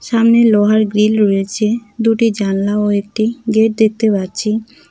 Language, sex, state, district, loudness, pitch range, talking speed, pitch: Bengali, female, West Bengal, Cooch Behar, -14 LUFS, 210-225 Hz, 135 wpm, 215 Hz